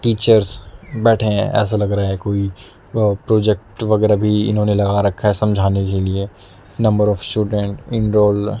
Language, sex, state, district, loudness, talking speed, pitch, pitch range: Hindi, male, Delhi, New Delhi, -17 LUFS, 165 wpm, 105 Hz, 100-110 Hz